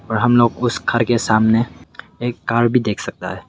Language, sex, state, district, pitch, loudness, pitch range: Hindi, male, Meghalaya, West Garo Hills, 115 Hz, -17 LUFS, 110-120 Hz